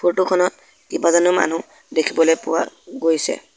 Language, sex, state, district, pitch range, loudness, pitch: Assamese, male, Assam, Sonitpur, 165-180 Hz, -19 LUFS, 170 Hz